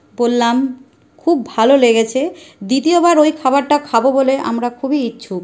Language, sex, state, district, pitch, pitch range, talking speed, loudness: Bengali, male, West Bengal, Jhargram, 265 Hz, 235-295 Hz, 130 wpm, -15 LUFS